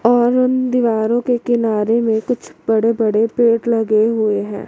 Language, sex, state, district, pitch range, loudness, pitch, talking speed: Hindi, female, Chandigarh, Chandigarh, 220-240 Hz, -16 LUFS, 230 Hz, 165 wpm